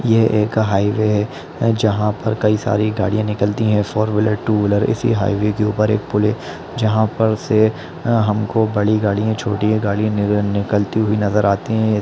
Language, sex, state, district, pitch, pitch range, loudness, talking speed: Hindi, male, Chhattisgarh, Rajnandgaon, 105 Hz, 105-110 Hz, -17 LUFS, 185 wpm